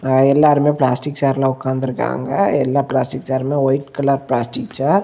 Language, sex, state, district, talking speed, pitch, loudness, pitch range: Tamil, male, Tamil Nadu, Kanyakumari, 145 wpm, 135 Hz, -17 LUFS, 130-145 Hz